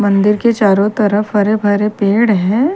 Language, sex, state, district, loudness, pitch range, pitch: Hindi, female, Haryana, Charkhi Dadri, -13 LUFS, 205-215 Hz, 210 Hz